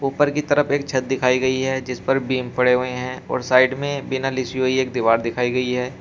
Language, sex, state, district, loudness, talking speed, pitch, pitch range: Hindi, male, Uttar Pradesh, Shamli, -20 LUFS, 250 wpm, 130 Hz, 125-135 Hz